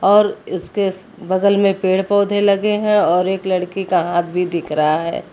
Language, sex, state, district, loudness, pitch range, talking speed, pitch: Hindi, female, Uttar Pradesh, Lucknow, -17 LUFS, 180-200 Hz, 190 wpm, 190 Hz